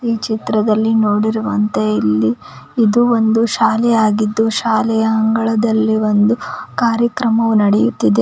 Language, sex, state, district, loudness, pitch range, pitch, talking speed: Kannada, female, Karnataka, Koppal, -15 LUFS, 215-225 Hz, 220 Hz, 95 wpm